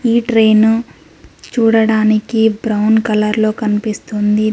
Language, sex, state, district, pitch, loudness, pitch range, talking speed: Telugu, female, Telangana, Mahabubabad, 220 Hz, -14 LUFS, 215-225 Hz, 95 wpm